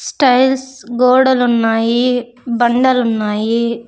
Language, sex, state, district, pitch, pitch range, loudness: Telugu, female, Andhra Pradesh, Sri Satya Sai, 245 Hz, 235-255 Hz, -14 LUFS